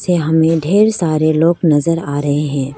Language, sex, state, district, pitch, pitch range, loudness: Hindi, female, Arunachal Pradesh, Lower Dibang Valley, 160 Hz, 150-170 Hz, -14 LUFS